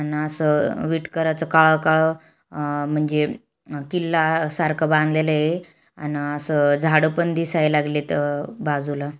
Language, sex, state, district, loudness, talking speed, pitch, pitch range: Marathi, female, Maharashtra, Aurangabad, -21 LUFS, 105 wpm, 155 Hz, 150-160 Hz